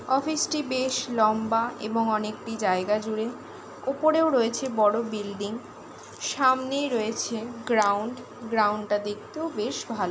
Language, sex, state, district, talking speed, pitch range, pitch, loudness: Bengali, female, West Bengal, Jalpaiguri, 125 wpm, 215-260 Hz, 230 Hz, -26 LUFS